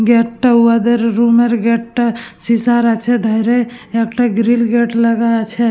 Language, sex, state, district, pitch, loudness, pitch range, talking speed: Bengali, female, West Bengal, Purulia, 230 Hz, -13 LUFS, 230-235 Hz, 155 wpm